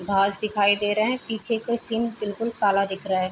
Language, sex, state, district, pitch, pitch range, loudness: Hindi, female, Uttar Pradesh, Deoria, 210 Hz, 200-230 Hz, -22 LUFS